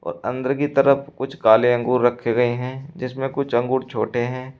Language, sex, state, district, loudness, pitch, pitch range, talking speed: Hindi, male, Uttar Pradesh, Shamli, -21 LUFS, 130 Hz, 120-135 Hz, 195 wpm